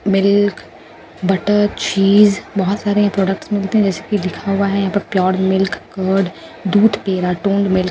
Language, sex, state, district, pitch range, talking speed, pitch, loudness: Hindi, female, Bihar, Katihar, 190-205 Hz, 180 wpm, 195 Hz, -16 LUFS